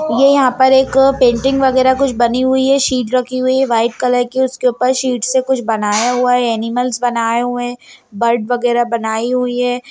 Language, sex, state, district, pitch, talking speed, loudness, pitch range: Hindi, female, Bihar, Lakhisarai, 250 Hz, 205 wpm, -14 LUFS, 240-260 Hz